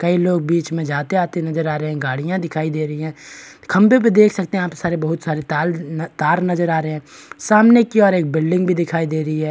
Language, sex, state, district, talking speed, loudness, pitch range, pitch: Hindi, male, Bihar, Kishanganj, 245 wpm, -17 LUFS, 155-180 Hz, 170 Hz